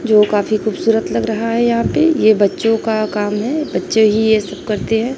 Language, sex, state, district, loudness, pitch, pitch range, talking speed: Hindi, female, Chhattisgarh, Raipur, -15 LUFS, 220 Hz, 210-225 Hz, 220 wpm